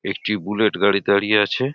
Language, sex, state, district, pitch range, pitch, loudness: Bengali, male, West Bengal, Purulia, 100-110 Hz, 105 Hz, -19 LUFS